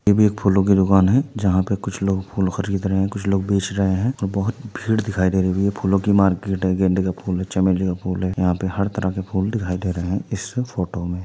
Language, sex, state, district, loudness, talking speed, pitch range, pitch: Hindi, male, Uttar Pradesh, Muzaffarnagar, -20 LUFS, 290 wpm, 95-100 Hz, 95 Hz